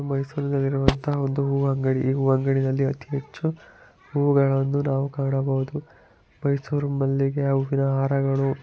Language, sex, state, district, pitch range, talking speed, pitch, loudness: Kannada, male, Karnataka, Mysore, 135-140 Hz, 105 wpm, 135 Hz, -24 LUFS